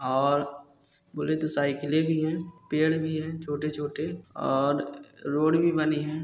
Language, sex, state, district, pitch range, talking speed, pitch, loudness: Hindi, male, Andhra Pradesh, Anantapur, 145-160 Hz, 105 wpm, 150 Hz, -27 LUFS